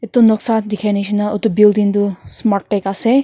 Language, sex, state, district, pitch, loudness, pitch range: Nagamese, female, Nagaland, Kohima, 210 Hz, -15 LUFS, 205-225 Hz